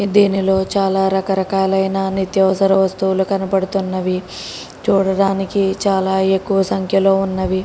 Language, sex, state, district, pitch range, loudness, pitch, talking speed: Telugu, female, Telangana, Karimnagar, 190-195 Hz, -17 LUFS, 195 Hz, 85 wpm